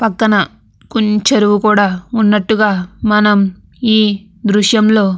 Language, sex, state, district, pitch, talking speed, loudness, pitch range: Telugu, female, Andhra Pradesh, Anantapur, 210 Hz, 80 wpm, -13 LUFS, 205-220 Hz